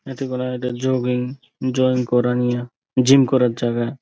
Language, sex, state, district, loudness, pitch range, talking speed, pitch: Bengali, male, West Bengal, Dakshin Dinajpur, -20 LUFS, 125-130 Hz, 150 wpm, 125 Hz